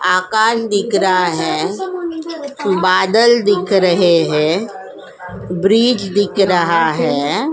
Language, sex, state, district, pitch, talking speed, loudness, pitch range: Hindi, female, Goa, North and South Goa, 195 Hz, 95 wpm, -14 LUFS, 180-225 Hz